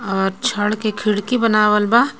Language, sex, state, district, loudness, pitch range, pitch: Bhojpuri, female, Jharkhand, Palamu, -17 LUFS, 205-235 Hz, 210 Hz